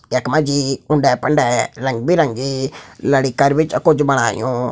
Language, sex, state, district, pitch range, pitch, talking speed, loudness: Garhwali, male, Uttarakhand, Tehri Garhwal, 130-150 Hz, 140 Hz, 140 wpm, -17 LUFS